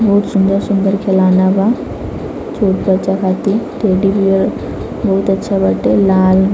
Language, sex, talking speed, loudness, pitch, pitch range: Bhojpuri, female, 120 wpm, -14 LUFS, 195 Hz, 190-200 Hz